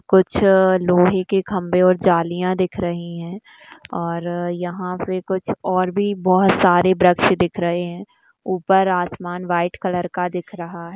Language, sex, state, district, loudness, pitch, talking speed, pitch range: Hindi, female, Bihar, Kishanganj, -19 LUFS, 180 Hz, 160 wpm, 175-190 Hz